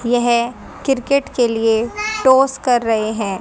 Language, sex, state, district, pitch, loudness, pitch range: Hindi, female, Haryana, Jhajjar, 240 Hz, -17 LUFS, 225-265 Hz